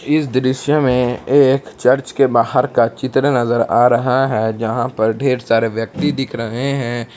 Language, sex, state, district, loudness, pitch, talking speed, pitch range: Hindi, male, Jharkhand, Palamu, -16 LUFS, 125 Hz, 175 wpm, 115-135 Hz